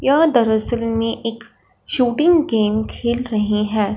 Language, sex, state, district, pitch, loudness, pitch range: Hindi, female, Punjab, Fazilka, 230 Hz, -17 LUFS, 220-250 Hz